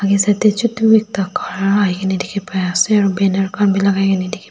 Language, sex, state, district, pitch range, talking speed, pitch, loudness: Nagamese, female, Nagaland, Dimapur, 190-205 Hz, 225 wpm, 195 Hz, -16 LUFS